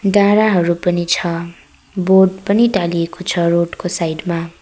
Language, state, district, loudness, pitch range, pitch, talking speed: Nepali, West Bengal, Darjeeling, -16 LUFS, 170-190 Hz, 175 Hz, 145 wpm